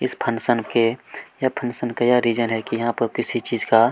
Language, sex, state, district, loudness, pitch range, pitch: Hindi, male, Chhattisgarh, Kabirdham, -21 LUFS, 115-120 Hz, 120 Hz